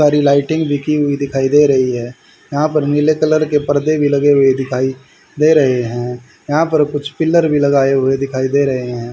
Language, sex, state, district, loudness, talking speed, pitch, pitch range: Hindi, male, Haryana, Rohtak, -14 LUFS, 210 wpm, 140 Hz, 130-150 Hz